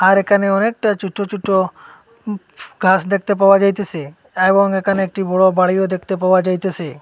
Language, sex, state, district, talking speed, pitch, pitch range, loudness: Bengali, male, Assam, Hailakandi, 145 wpm, 195 Hz, 185-200 Hz, -16 LUFS